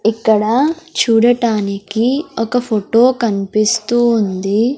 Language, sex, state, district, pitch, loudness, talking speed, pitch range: Telugu, female, Andhra Pradesh, Sri Satya Sai, 230 Hz, -15 LUFS, 75 wpm, 215-245 Hz